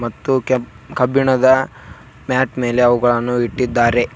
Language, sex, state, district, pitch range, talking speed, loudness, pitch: Kannada, male, Karnataka, Koppal, 120-130 Hz, 115 wpm, -16 LUFS, 125 Hz